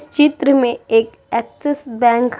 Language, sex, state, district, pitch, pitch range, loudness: Hindi, female, Uttar Pradesh, Budaun, 250 Hz, 235-290 Hz, -16 LUFS